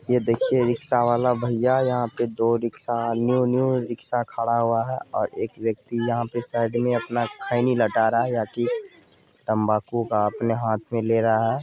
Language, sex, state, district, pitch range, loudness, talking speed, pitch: Maithili, male, Bihar, Supaul, 115-120 Hz, -23 LUFS, 185 wpm, 120 Hz